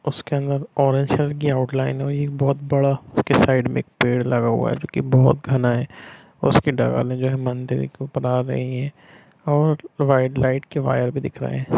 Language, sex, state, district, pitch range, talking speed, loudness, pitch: Hindi, male, Bihar, Lakhisarai, 125-140 Hz, 220 wpm, -21 LUFS, 130 Hz